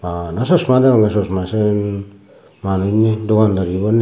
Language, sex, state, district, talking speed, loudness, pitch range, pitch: Chakma, male, Tripura, Unakoti, 135 wpm, -16 LUFS, 95-110 Hz, 105 Hz